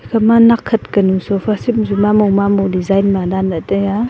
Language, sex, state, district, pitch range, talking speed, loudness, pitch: Wancho, female, Arunachal Pradesh, Longding, 195-220 Hz, 175 wpm, -14 LUFS, 200 Hz